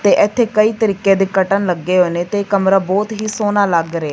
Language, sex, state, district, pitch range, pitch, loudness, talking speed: Punjabi, female, Punjab, Fazilka, 185-210 Hz, 200 Hz, -15 LUFS, 230 wpm